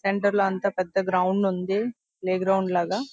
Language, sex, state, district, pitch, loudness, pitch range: Telugu, female, Andhra Pradesh, Visakhapatnam, 195 Hz, -25 LUFS, 185-200 Hz